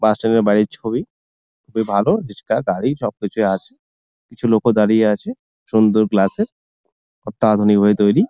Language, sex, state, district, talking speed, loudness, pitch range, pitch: Bengali, male, West Bengal, Jalpaiguri, 135 wpm, -17 LUFS, 105-115 Hz, 110 Hz